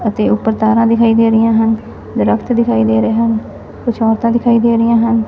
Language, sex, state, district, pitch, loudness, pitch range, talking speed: Punjabi, female, Punjab, Fazilka, 225 Hz, -13 LUFS, 215-230 Hz, 160 wpm